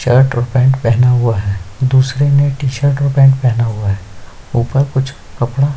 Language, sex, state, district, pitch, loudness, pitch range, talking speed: Hindi, male, Chhattisgarh, Sukma, 125 Hz, -14 LUFS, 115-135 Hz, 185 wpm